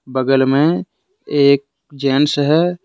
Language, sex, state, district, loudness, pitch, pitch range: Hindi, male, Jharkhand, Deoghar, -15 LUFS, 145 Hz, 140-165 Hz